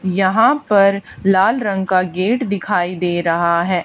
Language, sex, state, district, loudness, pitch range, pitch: Hindi, female, Haryana, Charkhi Dadri, -16 LUFS, 180-200 Hz, 190 Hz